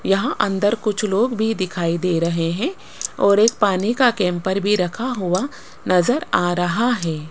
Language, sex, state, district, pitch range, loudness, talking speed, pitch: Hindi, female, Rajasthan, Jaipur, 180-230 Hz, -19 LUFS, 170 wpm, 200 Hz